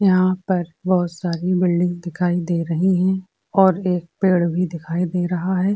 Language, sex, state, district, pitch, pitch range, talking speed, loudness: Hindi, male, Uttar Pradesh, Varanasi, 180 Hz, 175-185 Hz, 175 wpm, -20 LUFS